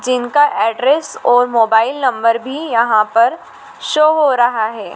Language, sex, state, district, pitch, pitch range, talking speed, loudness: Hindi, female, Madhya Pradesh, Dhar, 245 Hz, 230-285 Hz, 145 wpm, -14 LUFS